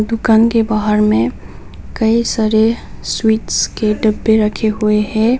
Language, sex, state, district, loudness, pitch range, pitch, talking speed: Hindi, female, Nagaland, Kohima, -14 LUFS, 210-225 Hz, 220 Hz, 135 wpm